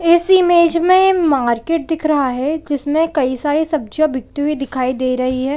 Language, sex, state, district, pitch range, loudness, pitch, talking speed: Hindi, female, Chhattisgarh, Bilaspur, 260-330 Hz, -16 LUFS, 295 Hz, 195 wpm